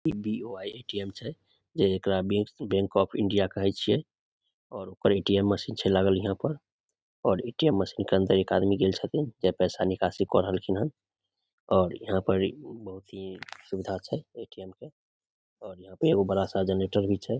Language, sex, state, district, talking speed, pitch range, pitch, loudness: Maithili, male, Bihar, Samastipur, 175 wpm, 95-100 Hz, 95 Hz, -28 LUFS